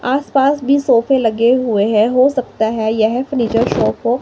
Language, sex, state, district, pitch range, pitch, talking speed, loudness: Hindi, female, Himachal Pradesh, Shimla, 225-265 Hz, 240 Hz, 185 wpm, -15 LUFS